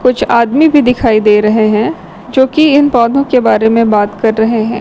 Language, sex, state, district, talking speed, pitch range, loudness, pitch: Hindi, female, Chhattisgarh, Raipur, 225 wpm, 215-260 Hz, -10 LUFS, 230 Hz